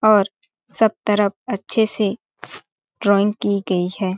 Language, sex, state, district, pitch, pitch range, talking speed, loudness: Hindi, female, Chhattisgarh, Balrampur, 205 Hz, 200-220 Hz, 130 wpm, -20 LUFS